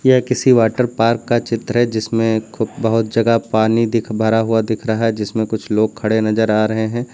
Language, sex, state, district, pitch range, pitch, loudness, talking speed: Hindi, male, Uttar Pradesh, Lucknow, 110-115 Hz, 115 Hz, -17 LUFS, 220 wpm